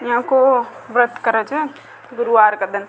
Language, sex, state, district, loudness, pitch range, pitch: Rajasthani, female, Rajasthan, Nagaur, -16 LUFS, 225-260 Hz, 240 Hz